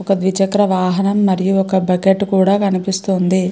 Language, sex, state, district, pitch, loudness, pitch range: Telugu, female, Andhra Pradesh, Chittoor, 190 Hz, -15 LUFS, 185-195 Hz